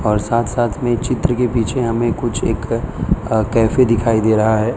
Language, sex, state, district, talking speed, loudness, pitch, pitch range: Hindi, male, Gujarat, Valsad, 200 wpm, -17 LUFS, 115 Hz, 110-120 Hz